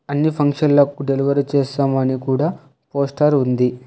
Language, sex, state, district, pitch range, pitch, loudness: Telugu, male, Telangana, Hyderabad, 135-145 Hz, 140 Hz, -18 LUFS